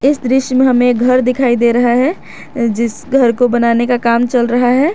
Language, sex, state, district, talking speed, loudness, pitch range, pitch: Hindi, female, Jharkhand, Garhwa, 220 wpm, -13 LUFS, 240-255 Hz, 245 Hz